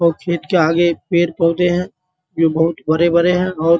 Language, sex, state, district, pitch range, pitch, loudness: Hindi, male, Bihar, Muzaffarpur, 165-180 Hz, 170 Hz, -16 LUFS